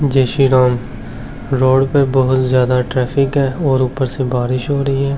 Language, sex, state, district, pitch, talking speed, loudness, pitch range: Hindi, male, Delhi, New Delhi, 130 Hz, 185 wpm, -15 LUFS, 125-135 Hz